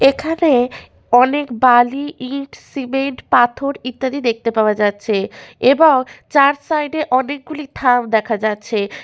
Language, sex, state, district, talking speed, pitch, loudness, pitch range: Bengali, female, West Bengal, Malda, 120 wpm, 260 Hz, -16 LUFS, 235-280 Hz